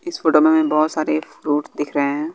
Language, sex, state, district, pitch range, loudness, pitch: Hindi, male, Bihar, West Champaran, 150-160 Hz, -18 LUFS, 155 Hz